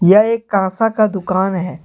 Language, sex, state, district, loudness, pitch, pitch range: Hindi, male, Jharkhand, Deoghar, -16 LUFS, 195 Hz, 185-215 Hz